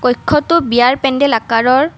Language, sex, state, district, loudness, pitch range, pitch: Assamese, female, Assam, Kamrup Metropolitan, -13 LUFS, 245-295 Hz, 260 Hz